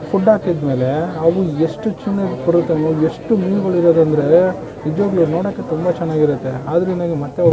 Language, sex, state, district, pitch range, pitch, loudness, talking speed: Kannada, male, Karnataka, Bangalore, 155-185 Hz, 170 Hz, -17 LUFS, 150 wpm